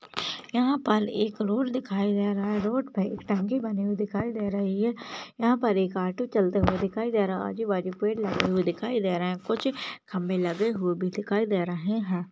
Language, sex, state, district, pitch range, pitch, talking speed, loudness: Hindi, female, Maharashtra, Chandrapur, 190-225 Hz, 205 Hz, 210 wpm, -27 LUFS